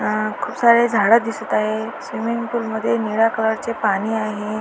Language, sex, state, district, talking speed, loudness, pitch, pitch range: Marathi, female, Maharashtra, Dhule, 180 wpm, -19 LUFS, 225 Hz, 215-230 Hz